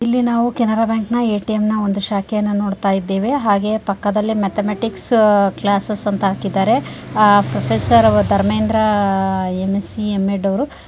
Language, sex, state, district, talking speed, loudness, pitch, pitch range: Kannada, female, Karnataka, Raichur, 145 wpm, -17 LUFS, 210 Hz, 200-220 Hz